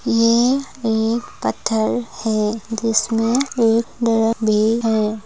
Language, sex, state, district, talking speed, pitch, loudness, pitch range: Hindi, female, Rajasthan, Churu, 105 wpm, 225 Hz, -19 LUFS, 220-230 Hz